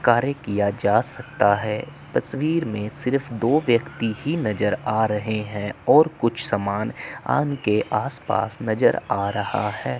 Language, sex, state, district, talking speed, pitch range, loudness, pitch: Hindi, male, Chandigarh, Chandigarh, 145 wpm, 105-135 Hz, -22 LUFS, 110 Hz